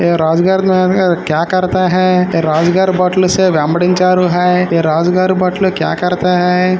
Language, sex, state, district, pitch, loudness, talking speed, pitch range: Hindi, male, Maharashtra, Solapur, 180 Hz, -12 LUFS, 90 wpm, 170-185 Hz